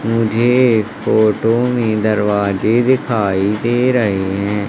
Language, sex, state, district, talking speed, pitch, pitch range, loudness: Hindi, male, Madhya Pradesh, Katni, 115 wpm, 110 Hz, 105-120 Hz, -15 LUFS